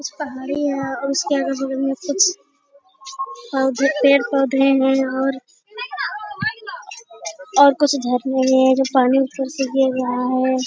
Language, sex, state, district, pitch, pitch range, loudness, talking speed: Hindi, female, Bihar, Jamui, 270 Hz, 260-290 Hz, -18 LUFS, 140 wpm